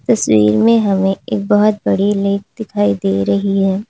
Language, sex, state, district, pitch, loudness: Hindi, female, Uttar Pradesh, Lalitpur, 195 Hz, -14 LUFS